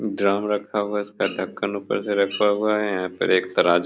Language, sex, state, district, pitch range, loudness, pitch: Hindi, male, Bihar, Begusarai, 100-105 Hz, -23 LUFS, 100 Hz